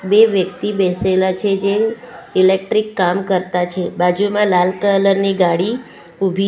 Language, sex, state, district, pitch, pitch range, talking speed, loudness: Gujarati, female, Gujarat, Valsad, 195 Hz, 185-205 Hz, 140 wpm, -16 LUFS